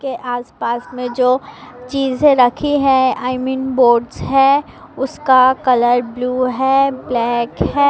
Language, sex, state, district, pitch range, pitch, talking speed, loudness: Hindi, male, Maharashtra, Mumbai Suburban, 245-270 Hz, 255 Hz, 135 wpm, -15 LUFS